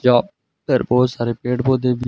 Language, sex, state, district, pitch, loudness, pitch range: Hindi, male, Rajasthan, Bikaner, 125 Hz, -19 LUFS, 120-125 Hz